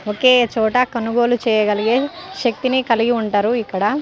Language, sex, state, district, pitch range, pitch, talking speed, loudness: Telugu, female, Telangana, Nalgonda, 220-255 Hz, 235 Hz, 120 wpm, -17 LUFS